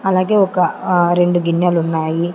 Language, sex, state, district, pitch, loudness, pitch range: Telugu, female, Andhra Pradesh, Sri Satya Sai, 175 Hz, -15 LUFS, 170-185 Hz